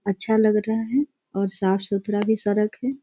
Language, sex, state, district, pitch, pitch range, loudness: Hindi, female, Bihar, Sitamarhi, 210 Hz, 200-225 Hz, -23 LUFS